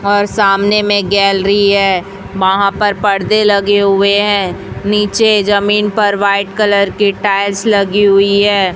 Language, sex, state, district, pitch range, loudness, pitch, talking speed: Hindi, female, Chhattisgarh, Raipur, 195-205 Hz, -11 LUFS, 200 Hz, 145 wpm